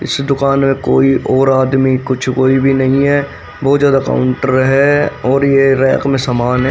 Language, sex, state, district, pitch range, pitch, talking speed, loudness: Hindi, male, Haryana, Rohtak, 130-140 Hz, 135 Hz, 195 wpm, -12 LUFS